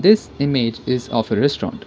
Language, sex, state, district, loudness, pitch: English, female, Karnataka, Bangalore, -19 LUFS, 140 Hz